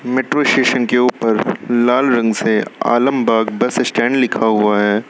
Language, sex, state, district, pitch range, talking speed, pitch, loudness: Hindi, male, Uttar Pradesh, Lucknow, 110-125 Hz, 150 wpm, 120 Hz, -15 LUFS